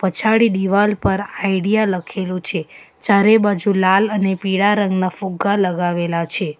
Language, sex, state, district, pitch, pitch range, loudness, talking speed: Gujarati, female, Gujarat, Valsad, 195 Hz, 185-205 Hz, -17 LUFS, 135 wpm